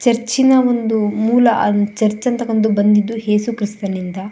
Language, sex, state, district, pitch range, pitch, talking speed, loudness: Kannada, female, Karnataka, Shimoga, 210-240 Hz, 220 Hz, 125 wpm, -16 LUFS